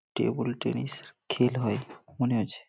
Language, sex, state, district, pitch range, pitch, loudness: Bengali, male, West Bengal, Malda, 105-125 Hz, 125 Hz, -30 LUFS